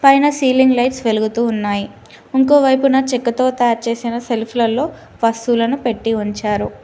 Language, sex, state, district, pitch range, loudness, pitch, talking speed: Telugu, female, Telangana, Mahabubabad, 225-265 Hz, -16 LUFS, 235 Hz, 125 wpm